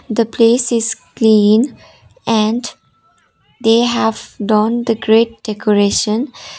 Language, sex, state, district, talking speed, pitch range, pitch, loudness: English, female, Sikkim, Gangtok, 100 wpm, 215-235 Hz, 225 Hz, -14 LUFS